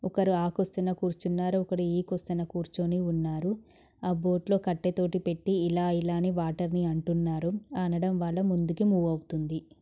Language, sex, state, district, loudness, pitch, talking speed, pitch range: Telugu, female, Andhra Pradesh, Srikakulam, -29 LUFS, 180 Hz, 155 wpm, 170-185 Hz